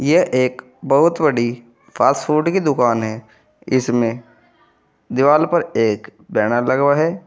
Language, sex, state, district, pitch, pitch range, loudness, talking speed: Hindi, male, Uttar Pradesh, Saharanpur, 130 Hz, 120-150 Hz, -17 LUFS, 140 wpm